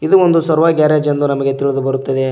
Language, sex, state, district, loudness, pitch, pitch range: Kannada, male, Karnataka, Koppal, -14 LUFS, 145 Hz, 135-160 Hz